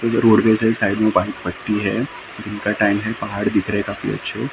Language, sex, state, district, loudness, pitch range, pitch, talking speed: Hindi, male, Maharashtra, Mumbai Suburban, -19 LUFS, 105-115 Hz, 110 Hz, 240 wpm